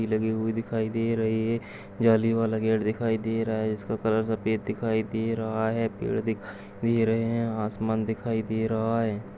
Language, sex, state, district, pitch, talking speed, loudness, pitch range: Kumaoni, male, Uttarakhand, Uttarkashi, 110 Hz, 200 wpm, -27 LUFS, 110-115 Hz